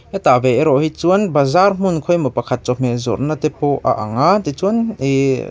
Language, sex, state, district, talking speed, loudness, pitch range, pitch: Mizo, male, Mizoram, Aizawl, 195 wpm, -16 LUFS, 130-180 Hz, 145 Hz